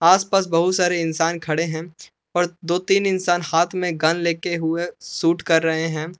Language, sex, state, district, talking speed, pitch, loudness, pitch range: Hindi, male, Jharkhand, Palamu, 185 wpm, 170 Hz, -21 LUFS, 165-175 Hz